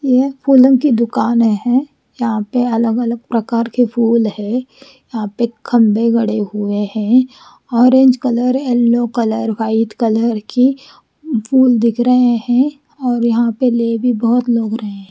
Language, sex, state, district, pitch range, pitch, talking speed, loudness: Hindi, female, Chandigarh, Chandigarh, 230-255 Hz, 235 Hz, 155 wpm, -14 LUFS